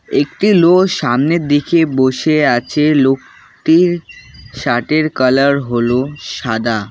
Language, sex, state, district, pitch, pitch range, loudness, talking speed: Bengali, male, West Bengal, Alipurduar, 140 Hz, 130-155 Hz, -14 LUFS, 105 wpm